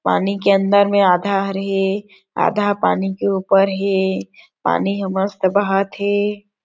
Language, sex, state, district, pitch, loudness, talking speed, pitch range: Chhattisgarhi, female, Chhattisgarh, Sarguja, 195 Hz, -18 LUFS, 170 wpm, 195-200 Hz